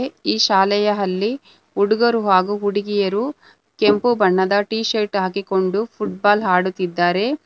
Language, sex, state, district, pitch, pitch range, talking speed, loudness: Kannada, female, Karnataka, Bangalore, 205 Hz, 190-215 Hz, 95 wpm, -18 LUFS